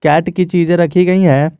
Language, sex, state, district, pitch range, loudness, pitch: Hindi, male, Jharkhand, Garhwa, 160-180 Hz, -12 LUFS, 170 Hz